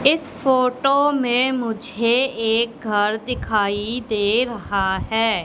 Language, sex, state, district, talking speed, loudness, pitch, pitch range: Hindi, female, Madhya Pradesh, Katni, 110 wpm, -20 LUFS, 235 Hz, 215-255 Hz